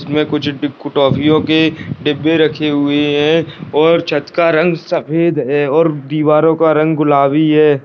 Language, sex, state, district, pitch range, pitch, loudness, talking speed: Hindi, male, Bihar, Purnia, 145-160 Hz, 155 Hz, -13 LUFS, 160 wpm